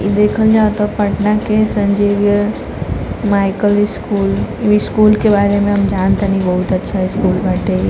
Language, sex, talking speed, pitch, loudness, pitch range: Bhojpuri, female, 145 wpm, 205 Hz, -14 LUFS, 195-210 Hz